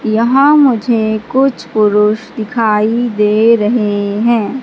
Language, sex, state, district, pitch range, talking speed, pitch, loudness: Hindi, female, Madhya Pradesh, Katni, 210-245 Hz, 105 wpm, 225 Hz, -12 LUFS